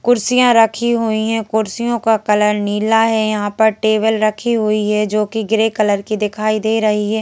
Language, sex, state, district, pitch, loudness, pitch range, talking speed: Hindi, female, Madhya Pradesh, Bhopal, 220 Hz, -15 LUFS, 215-225 Hz, 200 wpm